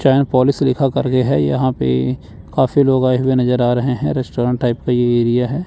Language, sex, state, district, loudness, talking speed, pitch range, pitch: Hindi, male, Chandigarh, Chandigarh, -16 LUFS, 210 wpm, 120-135 Hz, 125 Hz